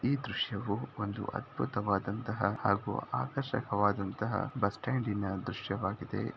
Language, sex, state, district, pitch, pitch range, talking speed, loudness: Kannada, male, Karnataka, Shimoga, 105 Hz, 100-115 Hz, 95 wpm, -34 LUFS